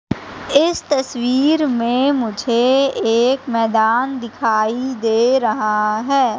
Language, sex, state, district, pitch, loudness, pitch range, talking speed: Hindi, female, Madhya Pradesh, Katni, 245 Hz, -17 LUFS, 225-270 Hz, 95 wpm